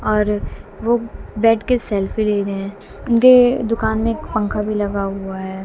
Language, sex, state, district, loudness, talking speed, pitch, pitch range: Hindi, female, Haryana, Jhajjar, -18 LUFS, 170 wpm, 215 Hz, 200-230 Hz